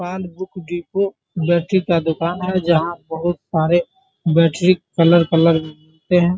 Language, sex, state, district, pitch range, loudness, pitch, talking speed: Maithili, male, Bihar, Muzaffarpur, 165-185 Hz, -18 LUFS, 175 Hz, 140 wpm